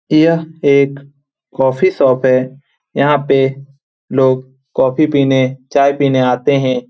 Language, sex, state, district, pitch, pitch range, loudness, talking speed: Hindi, male, Bihar, Lakhisarai, 135 Hz, 130-145 Hz, -14 LUFS, 120 wpm